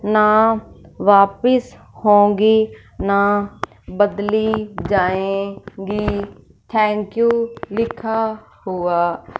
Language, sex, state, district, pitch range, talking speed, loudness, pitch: Hindi, female, Punjab, Fazilka, 200-220 Hz, 65 wpm, -18 LUFS, 205 Hz